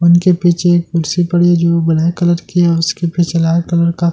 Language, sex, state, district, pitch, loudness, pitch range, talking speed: Hindi, male, Delhi, New Delhi, 170 Hz, -13 LUFS, 170-175 Hz, 275 wpm